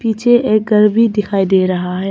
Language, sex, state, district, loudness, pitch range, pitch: Hindi, female, Arunachal Pradesh, Papum Pare, -13 LUFS, 190-225 Hz, 210 Hz